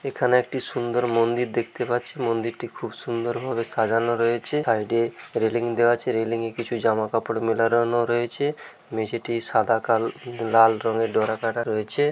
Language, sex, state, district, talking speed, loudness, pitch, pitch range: Bengali, male, West Bengal, Dakshin Dinajpur, 150 wpm, -24 LUFS, 115 Hz, 115-120 Hz